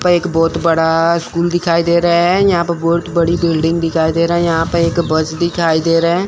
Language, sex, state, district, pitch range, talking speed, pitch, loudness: Hindi, male, Chandigarh, Chandigarh, 165-170 Hz, 240 wpm, 170 Hz, -14 LUFS